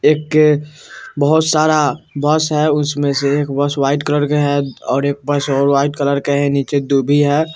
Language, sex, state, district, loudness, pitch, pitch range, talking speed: Bajjika, male, Bihar, Vaishali, -15 LUFS, 145 Hz, 140-150 Hz, 200 wpm